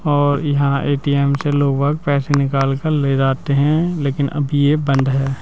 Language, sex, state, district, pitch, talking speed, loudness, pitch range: Hindi, male, Madhya Pradesh, Bhopal, 140 Hz, 175 wpm, -17 LUFS, 140-145 Hz